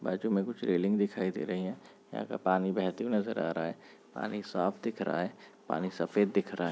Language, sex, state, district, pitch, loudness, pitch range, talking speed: Hindi, male, Goa, North and South Goa, 95 Hz, -33 LUFS, 90-100 Hz, 240 wpm